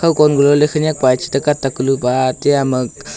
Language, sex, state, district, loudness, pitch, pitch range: Wancho, male, Arunachal Pradesh, Longding, -15 LUFS, 140 Hz, 130-150 Hz